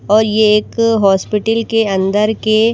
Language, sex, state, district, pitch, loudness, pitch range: Hindi, female, Madhya Pradesh, Bhopal, 215 Hz, -13 LUFS, 210-225 Hz